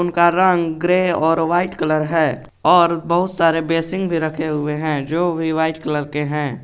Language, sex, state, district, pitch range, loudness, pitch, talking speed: Hindi, male, Jharkhand, Garhwa, 155-175 Hz, -18 LUFS, 165 Hz, 190 wpm